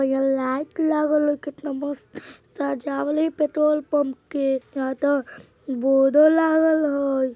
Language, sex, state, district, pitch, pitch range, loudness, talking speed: Bajjika, female, Bihar, Vaishali, 285 Hz, 270-300 Hz, -22 LUFS, 140 wpm